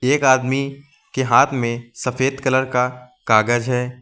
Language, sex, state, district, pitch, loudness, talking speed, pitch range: Hindi, male, Uttar Pradesh, Lucknow, 125 Hz, -19 LUFS, 150 wpm, 125-130 Hz